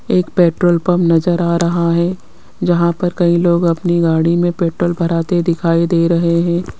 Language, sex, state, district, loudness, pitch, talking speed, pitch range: Hindi, female, Rajasthan, Jaipur, -14 LUFS, 170 Hz, 185 wpm, 170-175 Hz